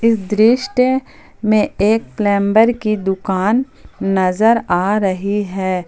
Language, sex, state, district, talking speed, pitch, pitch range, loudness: Hindi, female, Jharkhand, Palamu, 100 wpm, 210 Hz, 195-230 Hz, -16 LUFS